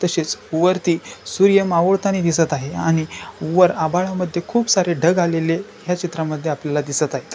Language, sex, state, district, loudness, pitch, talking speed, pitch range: Marathi, male, Maharashtra, Chandrapur, -19 LUFS, 170 Hz, 165 wpm, 160-180 Hz